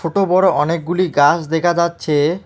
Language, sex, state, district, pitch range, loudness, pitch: Bengali, male, West Bengal, Alipurduar, 155-180 Hz, -16 LUFS, 170 Hz